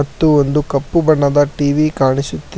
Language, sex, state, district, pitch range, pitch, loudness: Kannada, male, Karnataka, Bangalore, 140-155 Hz, 145 Hz, -14 LUFS